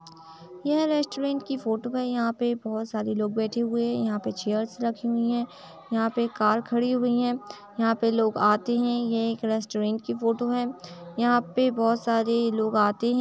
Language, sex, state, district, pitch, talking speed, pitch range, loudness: Hindi, female, Uttar Pradesh, Etah, 230 Hz, 200 wpm, 220-240 Hz, -26 LUFS